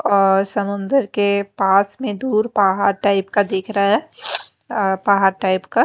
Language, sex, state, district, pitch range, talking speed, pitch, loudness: Hindi, female, Maharashtra, Mumbai Suburban, 195-210 Hz, 175 wpm, 200 Hz, -18 LUFS